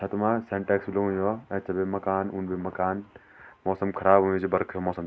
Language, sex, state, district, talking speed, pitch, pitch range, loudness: Garhwali, male, Uttarakhand, Tehri Garhwal, 225 wpm, 95 Hz, 95-100 Hz, -27 LUFS